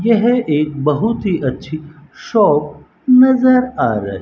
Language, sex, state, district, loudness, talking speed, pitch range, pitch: Hindi, male, Rajasthan, Bikaner, -14 LUFS, 130 wpm, 150-235 Hz, 165 Hz